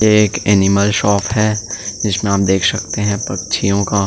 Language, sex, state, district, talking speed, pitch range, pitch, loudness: Hindi, male, Chhattisgarh, Sukma, 175 wpm, 100-105 Hz, 100 Hz, -15 LUFS